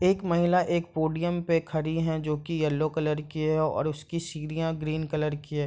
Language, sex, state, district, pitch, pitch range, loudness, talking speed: Hindi, male, Bihar, East Champaran, 160 Hz, 155-170 Hz, -28 LUFS, 210 wpm